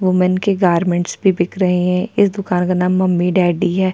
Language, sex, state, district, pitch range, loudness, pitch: Hindi, female, Chhattisgarh, Sukma, 180-185 Hz, -16 LUFS, 180 Hz